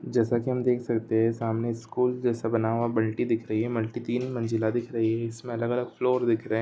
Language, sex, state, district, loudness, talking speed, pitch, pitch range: Hindi, male, Telangana, Nalgonda, -27 LUFS, 235 wpm, 115 Hz, 115-120 Hz